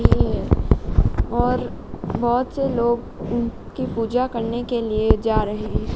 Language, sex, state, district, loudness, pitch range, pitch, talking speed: Hindi, female, Madhya Pradesh, Dhar, -22 LUFS, 225-240 Hz, 235 Hz, 110 wpm